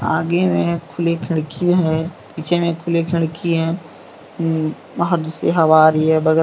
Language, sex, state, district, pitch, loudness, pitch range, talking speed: Hindi, male, Jharkhand, Deoghar, 165 Hz, -18 LUFS, 160-170 Hz, 150 wpm